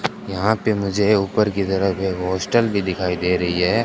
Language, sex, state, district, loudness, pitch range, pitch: Hindi, male, Rajasthan, Bikaner, -20 LUFS, 95-105 Hz, 95 Hz